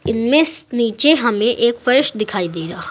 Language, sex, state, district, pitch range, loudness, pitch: Hindi, female, Uttar Pradesh, Saharanpur, 215-270 Hz, -16 LUFS, 235 Hz